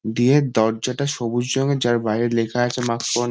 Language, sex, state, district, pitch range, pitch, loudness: Bengali, male, West Bengal, Kolkata, 115-125 Hz, 120 Hz, -20 LUFS